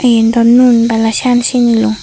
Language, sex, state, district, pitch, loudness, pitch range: Chakma, female, Tripura, Dhalai, 235 Hz, -10 LUFS, 225-245 Hz